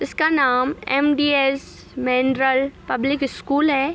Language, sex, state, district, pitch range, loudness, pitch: Hindi, female, Uttar Pradesh, Hamirpur, 265-285 Hz, -20 LUFS, 275 Hz